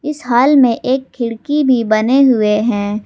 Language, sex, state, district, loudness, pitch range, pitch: Hindi, female, Jharkhand, Garhwa, -13 LUFS, 220-265 Hz, 245 Hz